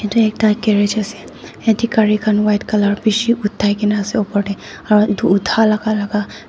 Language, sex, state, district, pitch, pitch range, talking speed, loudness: Nagamese, female, Nagaland, Dimapur, 210 Hz, 205-220 Hz, 185 wpm, -16 LUFS